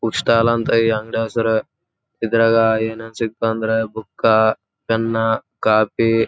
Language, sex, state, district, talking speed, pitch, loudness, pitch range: Kannada, male, Karnataka, Raichur, 50 wpm, 115 Hz, -18 LUFS, 110-115 Hz